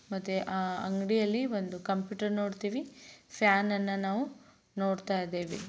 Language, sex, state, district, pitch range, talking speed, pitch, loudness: Kannada, female, Karnataka, Raichur, 190-210 Hz, 105 wpm, 195 Hz, -32 LUFS